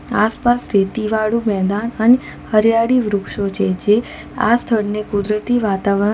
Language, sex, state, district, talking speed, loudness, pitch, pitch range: Gujarati, female, Gujarat, Valsad, 125 wpm, -17 LUFS, 215 Hz, 205-230 Hz